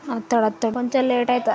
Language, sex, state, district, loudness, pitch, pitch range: Telugu, female, Andhra Pradesh, Srikakulam, -21 LUFS, 245 Hz, 230-250 Hz